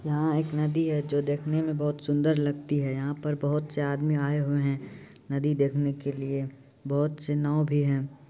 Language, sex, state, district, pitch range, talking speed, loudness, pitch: Maithili, male, Bihar, Supaul, 140-150 Hz, 200 wpm, -28 LUFS, 145 Hz